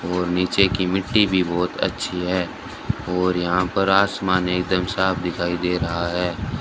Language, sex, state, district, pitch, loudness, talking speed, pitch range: Hindi, male, Rajasthan, Bikaner, 90 Hz, -21 LUFS, 165 wpm, 90-95 Hz